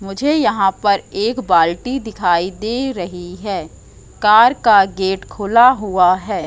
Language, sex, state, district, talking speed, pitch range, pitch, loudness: Hindi, female, Madhya Pradesh, Katni, 140 wpm, 180-225 Hz, 195 Hz, -15 LUFS